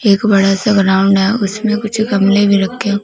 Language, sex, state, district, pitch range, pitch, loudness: Hindi, female, Punjab, Fazilka, 195-215 Hz, 200 Hz, -13 LUFS